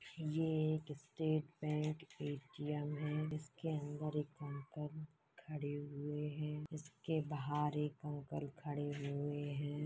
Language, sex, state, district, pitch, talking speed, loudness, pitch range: Hindi, female, Uttar Pradesh, Deoria, 150 Hz, 120 wpm, -43 LUFS, 145-155 Hz